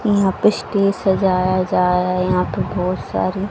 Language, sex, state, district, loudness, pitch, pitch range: Hindi, female, Haryana, Jhajjar, -18 LUFS, 185 Hz, 180-195 Hz